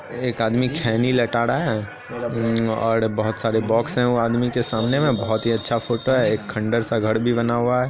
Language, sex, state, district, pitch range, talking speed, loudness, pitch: Hindi, male, Bihar, Purnia, 110-120 Hz, 210 wpm, -21 LUFS, 115 Hz